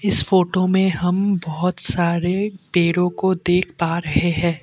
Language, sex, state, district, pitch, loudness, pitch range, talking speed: Hindi, male, Assam, Kamrup Metropolitan, 180 Hz, -19 LUFS, 170-185 Hz, 170 wpm